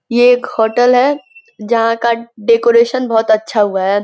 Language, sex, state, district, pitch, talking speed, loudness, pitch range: Hindi, female, Uttar Pradesh, Gorakhpur, 235 Hz, 165 wpm, -13 LUFS, 220-245 Hz